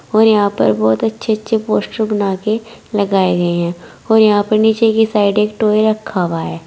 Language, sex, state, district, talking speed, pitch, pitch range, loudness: Hindi, female, Uttar Pradesh, Saharanpur, 200 wpm, 210 Hz, 185-220 Hz, -15 LUFS